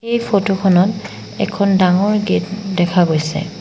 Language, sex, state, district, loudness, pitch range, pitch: Assamese, female, Assam, Sonitpur, -16 LUFS, 180-200 Hz, 195 Hz